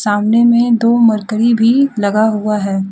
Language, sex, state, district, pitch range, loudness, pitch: Hindi, female, Jharkhand, Deoghar, 210-235 Hz, -12 LUFS, 220 Hz